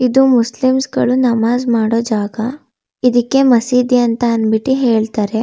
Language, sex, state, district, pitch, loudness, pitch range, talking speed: Kannada, female, Karnataka, Shimoga, 240 Hz, -14 LUFS, 225-255 Hz, 120 wpm